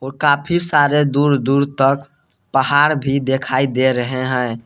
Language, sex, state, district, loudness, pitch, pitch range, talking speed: Hindi, male, Jharkhand, Palamu, -16 LUFS, 135 Hz, 130-145 Hz, 155 wpm